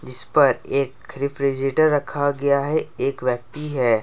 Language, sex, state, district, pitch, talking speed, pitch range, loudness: Hindi, male, Jharkhand, Ranchi, 140 Hz, 150 wpm, 135-145 Hz, -21 LUFS